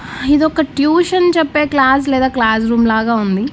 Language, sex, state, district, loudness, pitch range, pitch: Telugu, female, Andhra Pradesh, Annamaya, -13 LUFS, 230-310 Hz, 270 Hz